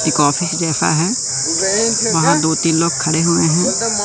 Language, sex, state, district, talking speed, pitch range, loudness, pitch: Hindi, male, Madhya Pradesh, Katni, 165 wpm, 160-190 Hz, -14 LUFS, 165 Hz